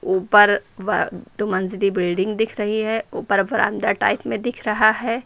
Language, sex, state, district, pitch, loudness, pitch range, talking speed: Hindi, female, Uttar Pradesh, Lucknow, 210 Hz, -20 LUFS, 195-220 Hz, 170 wpm